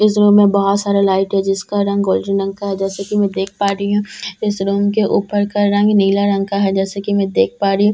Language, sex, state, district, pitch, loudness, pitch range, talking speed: Hindi, female, Bihar, Katihar, 200 Hz, -16 LUFS, 195-205 Hz, 280 wpm